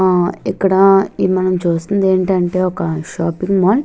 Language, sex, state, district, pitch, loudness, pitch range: Telugu, female, Andhra Pradesh, Visakhapatnam, 185 Hz, -15 LUFS, 175-190 Hz